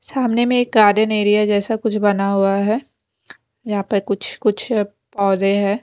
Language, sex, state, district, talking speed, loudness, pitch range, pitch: Hindi, female, Bihar, West Champaran, 165 wpm, -17 LUFS, 200-225 Hz, 210 Hz